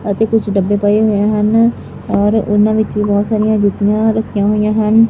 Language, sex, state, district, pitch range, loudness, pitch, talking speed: Punjabi, male, Punjab, Fazilka, 205-220 Hz, -13 LUFS, 210 Hz, 190 wpm